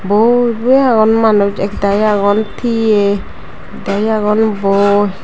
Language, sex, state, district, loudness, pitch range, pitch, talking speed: Chakma, female, Tripura, Dhalai, -13 LUFS, 200-220 Hz, 210 Hz, 125 wpm